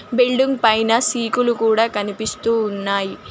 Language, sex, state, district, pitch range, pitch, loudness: Telugu, female, Telangana, Mahabubabad, 215-245 Hz, 225 Hz, -18 LUFS